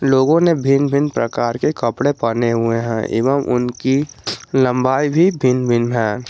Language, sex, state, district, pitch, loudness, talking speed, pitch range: Hindi, male, Jharkhand, Garhwa, 125 Hz, -17 LUFS, 160 wpm, 120-140 Hz